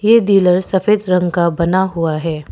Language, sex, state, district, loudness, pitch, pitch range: Hindi, female, Arunachal Pradesh, Papum Pare, -14 LUFS, 180 Hz, 170-195 Hz